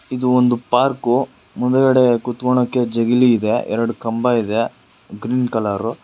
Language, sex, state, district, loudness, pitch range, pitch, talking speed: Kannada, male, Karnataka, Bangalore, -17 LUFS, 115-125 Hz, 120 Hz, 130 wpm